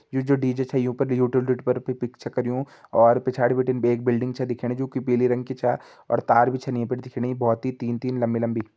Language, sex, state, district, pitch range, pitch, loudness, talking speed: Hindi, male, Uttarakhand, Tehri Garhwal, 120-130 Hz, 125 Hz, -24 LUFS, 235 wpm